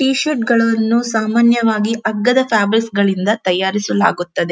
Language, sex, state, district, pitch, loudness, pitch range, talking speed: Kannada, female, Karnataka, Dharwad, 225 Hz, -15 LUFS, 205-235 Hz, 95 wpm